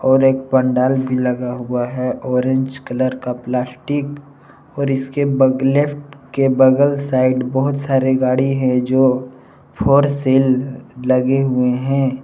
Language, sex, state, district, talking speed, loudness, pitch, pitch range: Hindi, male, Jharkhand, Palamu, 135 wpm, -17 LUFS, 130 Hz, 130-135 Hz